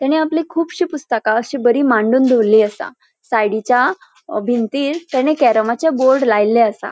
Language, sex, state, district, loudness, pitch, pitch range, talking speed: Konkani, female, Goa, North and South Goa, -15 LUFS, 250 Hz, 220-300 Hz, 140 wpm